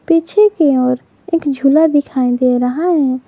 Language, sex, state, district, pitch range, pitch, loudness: Hindi, female, Jharkhand, Garhwa, 255-330 Hz, 285 Hz, -14 LUFS